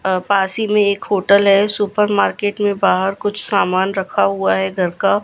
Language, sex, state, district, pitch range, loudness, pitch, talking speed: Hindi, female, Gujarat, Gandhinagar, 185-205 Hz, -16 LUFS, 200 Hz, 220 wpm